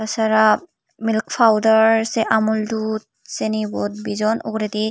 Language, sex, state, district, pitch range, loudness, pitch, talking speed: Chakma, female, Tripura, Unakoti, 215-225 Hz, -19 LUFS, 220 Hz, 120 wpm